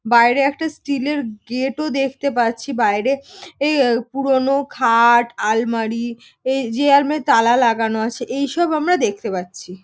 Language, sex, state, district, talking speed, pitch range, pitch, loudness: Bengali, female, West Bengal, North 24 Parganas, 130 wpm, 230-280 Hz, 260 Hz, -18 LUFS